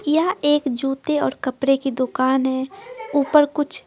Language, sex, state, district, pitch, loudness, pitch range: Hindi, female, Bihar, Patna, 280 Hz, -20 LUFS, 265-300 Hz